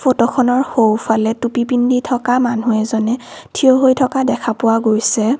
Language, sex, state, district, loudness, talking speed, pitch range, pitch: Assamese, female, Assam, Kamrup Metropolitan, -15 LUFS, 145 wpm, 225-255 Hz, 245 Hz